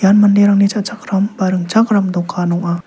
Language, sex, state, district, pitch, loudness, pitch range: Garo, male, Meghalaya, South Garo Hills, 200 Hz, -14 LUFS, 180-205 Hz